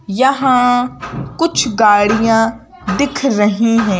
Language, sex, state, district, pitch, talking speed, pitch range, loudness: Hindi, female, Madhya Pradesh, Bhopal, 230 Hz, 90 wpm, 210-255 Hz, -13 LUFS